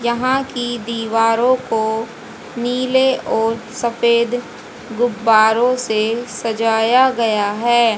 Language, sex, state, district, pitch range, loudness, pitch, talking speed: Hindi, female, Haryana, Jhajjar, 225-245 Hz, -17 LUFS, 235 Hz, 90 wpm